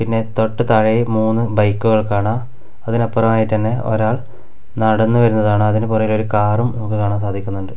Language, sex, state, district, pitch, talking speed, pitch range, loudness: Malayalam, male, Kerala, Kasaragod, 110 Hz, 140 wpm, 105-115 Hz, -16 LUFS